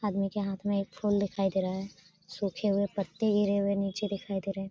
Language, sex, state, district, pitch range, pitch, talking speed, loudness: Hindi, female, Bihar, Saran, 195-205 Hz, 200 Hz, 240 wpm, -31 LUFS